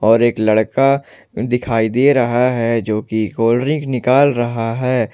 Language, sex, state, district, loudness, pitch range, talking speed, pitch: Hindi, male, Jharkhand, Ranchi, -16 LUFS, 115-130 Hz, 165 wpm, 120 Hz